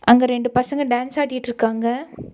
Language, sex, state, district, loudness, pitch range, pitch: Tamil, female, Tamil Nadu, Nilgiris, -20 LUFS, 240-260 Hz, 250 Hz